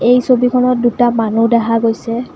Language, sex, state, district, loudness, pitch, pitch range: Assamese, female, Assam, Kamrup Metropolitan, -13 LUFS, 240 Hz, 230-250 Hz